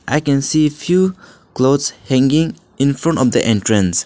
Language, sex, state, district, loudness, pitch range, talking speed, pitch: English, male, Arunachal Pradesh, Lower Dibang Valley, -16 LUFS, 130-155 Hz, 160 wpm, 140 Hz